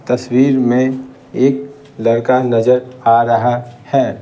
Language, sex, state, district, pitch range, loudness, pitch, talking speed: Hindi, male, Bihar, Patna, 120-130 Hz, -14 LUFS, 125 Hz, 115 wpm